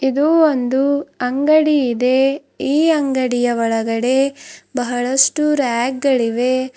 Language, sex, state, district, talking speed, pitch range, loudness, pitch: Kannada, female, Karnataka, Bidar, 90 wpm, 245-285 Hz, -16 LUFS, 265 Hz